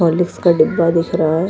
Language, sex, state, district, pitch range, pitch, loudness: Angika, female, Bihar, Bhagalpur, 165-175 Hz, 170 Hz, -15 LUFS